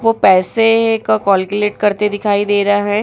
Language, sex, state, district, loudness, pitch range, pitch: Hindi, female, Bihar, Vaishali, -14 LUFS, 205-220 Hz, 205 Hz